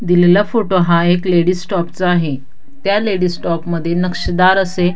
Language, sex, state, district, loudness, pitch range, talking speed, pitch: Marathi, female, Maharashtra, Dhule, -15 LUFS, 170-185 Hz, 170 wpm, 180 Hz